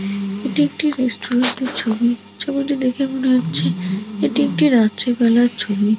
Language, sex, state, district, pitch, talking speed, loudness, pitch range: Bengali, female, West Bengal, Kolkata, 240 Hz, 140 wpm, -18 LUFS, 210-260 Hz